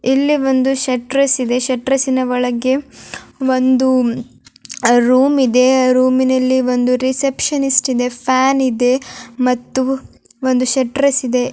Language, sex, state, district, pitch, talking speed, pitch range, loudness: Kannada, male, Karnataka, Dharwad, 260 Hz, 100 wpm, 250-265 Hz, -15 LUFS